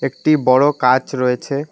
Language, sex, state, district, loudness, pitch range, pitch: Bengali, male, West Bengal, Alipurduar, -16 LUFS, 125-145 Hz, 135 Hz